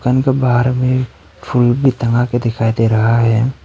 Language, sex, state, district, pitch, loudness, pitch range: Hindi, male, Arunachal Pradesh, Papum Pare, 120 Hz, -14 LUFS, 115-130 Hz